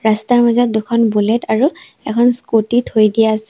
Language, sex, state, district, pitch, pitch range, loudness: Assamese, female, Assam, Sonitpur, 230 Hz, 220-245 Hz, -14 LUFS